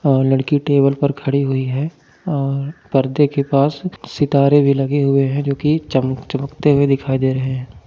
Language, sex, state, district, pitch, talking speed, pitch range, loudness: Hindi, male, Uttar Pradesh, Jyotiba Phule Nagar, 140 Hz, 190 wpm, 135-145 Hz, -17 LUFS